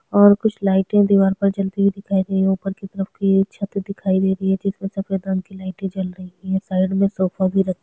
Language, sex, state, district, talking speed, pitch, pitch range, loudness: Hindi, female, Chhattisgarh, Sukma, 275 wpm, 195 Hz, 190-195 Hz, -20 LUFS